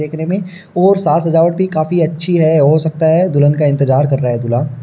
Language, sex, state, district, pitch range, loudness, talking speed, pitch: Hindi, male, Uttar Pradesh, Varanasi, 145-175 Hz, -13 LUFS, 235 wpm, 160 Hz